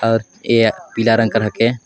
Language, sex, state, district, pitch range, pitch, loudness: Sadri, male, Chhattisgarh, Jashpur, 110-115 Hz, 115 Hz, -16 LUFS